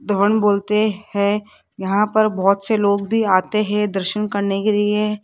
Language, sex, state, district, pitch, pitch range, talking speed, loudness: Hindi, female, Rajasthan, Jaipur, 210 Hz, 200-210 Hz, 170 wpm, -18 LUFS